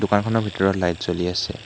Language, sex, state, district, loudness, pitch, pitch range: Assamese, male, Assam, Hailakandi, -22 LUFS, 95 Hz, 90-105 Hz